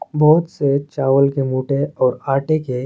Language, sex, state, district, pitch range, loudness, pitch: Hindi, male, Chhattisgarh, Sarguja, 135-150 Hz, -17 LUFS, 140 Hz